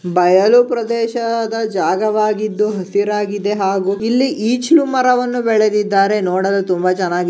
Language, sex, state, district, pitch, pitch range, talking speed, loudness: Kannada, male, Karnataka, Gulbarga, 210 Hz, 195-230 Hz, 105 wpm, -15 LUFS